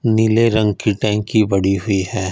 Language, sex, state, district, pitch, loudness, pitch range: Hindi, male, Punjab, Fazilka, 105 Hz, -17 LUFS, 100-110 Hz